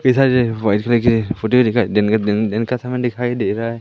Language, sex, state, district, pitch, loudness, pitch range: Hindi, male, Madhya Pradesh, Katni, 115 Hz, -17 LUFS, 110-125 Hz